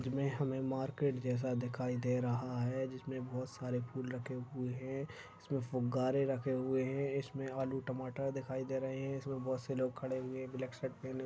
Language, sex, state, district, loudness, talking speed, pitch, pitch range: Hindi, male, Maharashtra, Aurangabad, -39 LUFS, 195 wpm, 130 Hz, 125-135 Hz